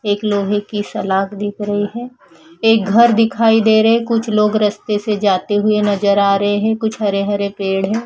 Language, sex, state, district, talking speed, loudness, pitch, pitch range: Hindi, female, Punjab, Fazilka, 185 wpm, -15 LUFS, 210 Hz, 205-225 Hz